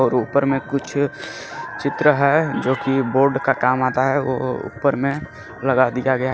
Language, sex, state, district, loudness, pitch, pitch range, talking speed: Hindi, male, Jharkhand, Garhwa, -19 LUFS, 135 Hz, 130-140 Hz, 190 wpm